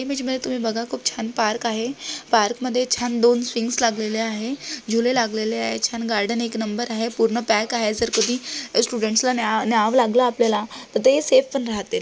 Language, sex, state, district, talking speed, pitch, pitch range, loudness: Marathi, female, Maharashtra, Solapur, 185 wpm, 235 Hz, 225-250 Hz, -21 LUFS